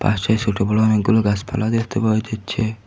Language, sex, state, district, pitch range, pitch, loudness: Bengali, male, Assam, Hailakandi, 105-110 Hz, 110 Hz, -19 LUFS